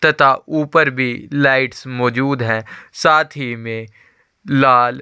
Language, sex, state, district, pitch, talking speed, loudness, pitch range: Hindi, male, Chhattisgarh, Sukma, 130 Hz, 120 wpm, -16 LUFS, 120-140 Hz